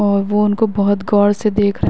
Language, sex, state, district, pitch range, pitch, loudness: Hindi, female, Uttar Pradesh, Varanasi, 200-210 Hz, 205 Hz, -15 LUFS